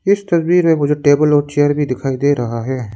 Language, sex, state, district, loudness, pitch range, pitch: Hindi, male, Arunachal Pradesh, Lower Dibang Valley, -15 LUFS, 130-160 Hz, 145 Hz